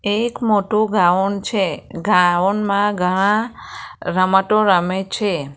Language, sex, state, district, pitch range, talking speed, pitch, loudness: Gujarati, female, Gujarat, Valsad, 185-215 Hz, 110 wpm, 200 Hz, -17 LUFS